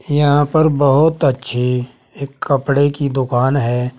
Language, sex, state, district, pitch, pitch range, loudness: Hindi, male, Uttar Pradesh, Saharanpur, 140 Hz, 125-145 Hz, -15 LUFS